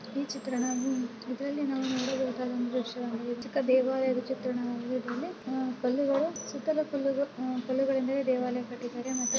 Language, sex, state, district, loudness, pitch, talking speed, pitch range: Kannada, female, Karnataka, Bellary, -31 LUFS, 255 Hz, 115 wpm, 250-270 Hz